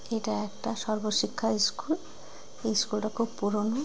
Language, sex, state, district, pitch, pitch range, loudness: Bengali, female, West Bengal, Jalpaiguri, 215 Hz, 210-230 Hz, -30 LUFS